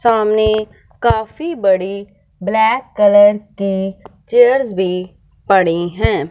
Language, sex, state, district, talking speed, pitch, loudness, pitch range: Hindi, female, Punjab, Fazilka, 95 wpm, 205 Hz, -15 LUFS, 190-220 Hz